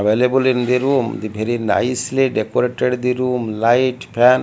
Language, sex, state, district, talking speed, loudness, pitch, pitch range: English, male, Odisha, Malkangiri, 165 wpm, -17 LUFS, 125 Hz, 115-130 Hz